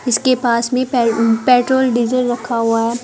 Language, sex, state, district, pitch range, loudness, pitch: Hindi, female, Uttar Pradesh, Saharanpur, 230-250 Hz, -15 LUFS, 245 Hz